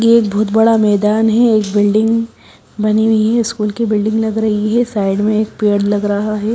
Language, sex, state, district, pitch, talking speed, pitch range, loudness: Hindi, female, Odisha, Sambalpur, 215 Hz, 220 wpm, 210-225 Hz, -14 LUFS